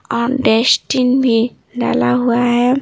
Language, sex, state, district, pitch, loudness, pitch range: Hindi, female, Bihar, Patna, 245 Hz, -15 LUFS, 235-255 Hz